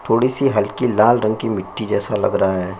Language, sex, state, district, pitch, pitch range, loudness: Hindi, male, Uttar Pradesh, Jyotiba Phule Nagar, 110 Hz, 100-120 Hz, -18 LUFS